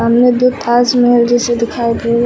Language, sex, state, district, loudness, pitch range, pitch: Hindi, female, Uttar Pradesh, Lucknow, -12 LUFS, 235-245 Hz, 240 Hz